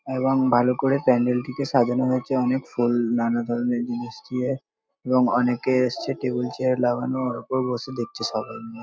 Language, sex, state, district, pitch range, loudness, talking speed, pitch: Bengali, male, West Bengal, North 24 Parganas, 120-130 Hz, -23 LUFS, 175 wpm, 125 Hz